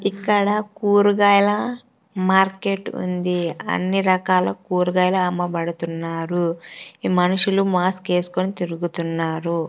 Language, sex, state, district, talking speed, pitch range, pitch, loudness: Telugu, female, Andhra Pradesh, Sri Satya Sai, 80 wpm, 175-200 Hz, 185 Hz, -20 LUFS